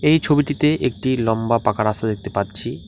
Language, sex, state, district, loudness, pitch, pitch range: Bengali, male, West Bengal, Alipurduar, -20 LUFS, 115 Hz, 105-145 Hz